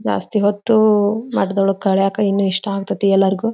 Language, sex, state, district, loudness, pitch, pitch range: Kannada, female, Karnataka, Belgaum, -17 LUFS, 200 Hz, 195-210 Hz